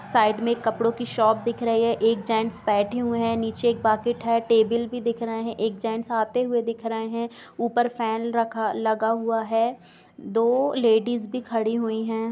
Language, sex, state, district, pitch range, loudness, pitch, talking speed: Hindi, female, Bihar, East Champaran, 225-235 Hz, -24 LUFS, 230 Hz, 205 wpm